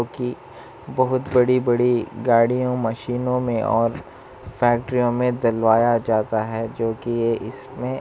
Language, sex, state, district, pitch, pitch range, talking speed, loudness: Hindi, female, Chhattisgarh, Bastar, 120 Hz, 115-125 Hz, 135 wpm, -21 LUFS